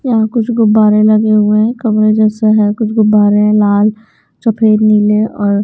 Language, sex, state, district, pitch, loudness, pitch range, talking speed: Hindi, female, Bihar, Patna, 215 Hz, -11 LUFS, 210-220 Hz, 170 wpm